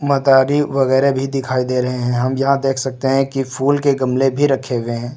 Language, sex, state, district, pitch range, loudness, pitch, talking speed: Hindi, male, Uttar Pradesh, Lucknow, 130-135 Hz, -17 LUFS, 135 Hz, 230 wpm